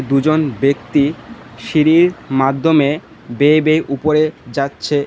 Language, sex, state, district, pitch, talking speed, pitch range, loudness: Bengali, male, West Bengal, Cooch Behar, 145 Hz, 95 wpm, 135-155 Hz, -15 LUFS